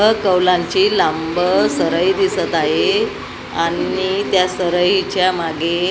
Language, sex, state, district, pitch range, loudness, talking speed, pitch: Marathi, female, Maharashtra, Gondia, 175-215 Hz, -16 LUFS, 100 wpm, 185 Hz